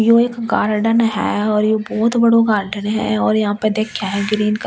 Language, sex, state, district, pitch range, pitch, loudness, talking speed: Hindi, female, Delhi, New Delhi, 210-225 Hz, 215 Hz, -17 LUFS, 230 wpm